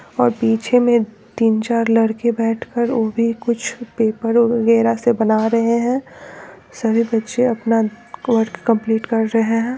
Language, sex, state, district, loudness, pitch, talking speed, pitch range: Hindi, female, Bihar, East Champaran, -17 LUFS, 230 Hz, 155 wpm, 225-235 Hz